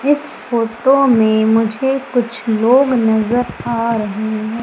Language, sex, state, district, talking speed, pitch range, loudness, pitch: Hindi, female, Madhya Pradesh, Umaria, 130 wpm, 220-260 Hz, -15 LUFS, 230 Hz